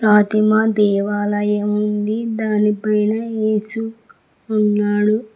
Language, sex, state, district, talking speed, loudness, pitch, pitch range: Telugu, female, Telangana, Mahabubabad, 80 wpm, -18 LUFS, 210 Hz, 210-220 Hz